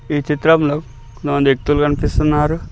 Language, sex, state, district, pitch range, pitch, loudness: Telugu, male, Telangana, Mahabubabad, 140-150 Hz, 145 Hz, -16 LUFS